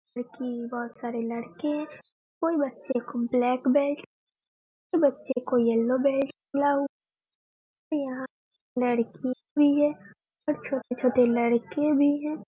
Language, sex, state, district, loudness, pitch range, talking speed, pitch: Hindi, female, Bihar, Muzaffarpur, -27 LUFS, 245-290 Hz, 130 wpm, 260 Hz